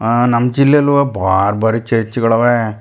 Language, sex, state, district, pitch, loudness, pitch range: Kannada, male, Karnataka, Chamarajanagar, 115 Hz, -13 LUFS, 110-125 Hz